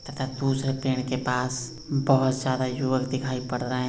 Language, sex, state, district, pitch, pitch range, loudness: Hindi, male, Uttar Pradesh, Hamirpur, 130 Hz, 125-135 Hz, -26 LUFS